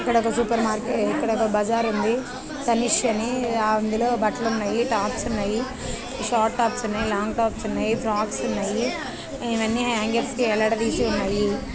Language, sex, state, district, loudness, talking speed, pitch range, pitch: Telugu, female, Andhra Pradesh, Chittoor, -23 LUFS, 140 wpm, 215-235 Hz, 230 Hz